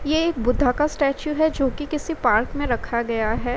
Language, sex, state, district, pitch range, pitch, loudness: Hindi, female, Uttar Pradesh, Varanasi, 245-300 Hz, 280 Hz, -22 LUFS